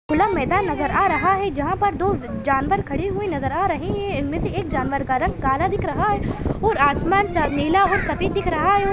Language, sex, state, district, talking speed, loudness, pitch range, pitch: Hindi, female, Chhattisgarh, Bilaspur, 250 wpm, -21 LUFS, 290-395 Hz, 385 Hz